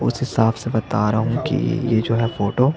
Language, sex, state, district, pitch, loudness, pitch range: Hindi, male, Chhattisgarh, Jashpur, 115 Hz, -20 LUFS, 110-125 Hz